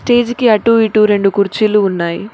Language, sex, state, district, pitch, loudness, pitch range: Telugu, female, Telangana, Mahabubabad, 215 Hz, -12 LUFS, 200-230 Hz